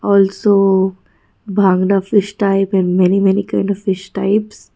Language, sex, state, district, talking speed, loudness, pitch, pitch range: English, female, Karnataka, Bangalore, 140 wpm, -15 LUFS, 195 Hz, 190-200 Hz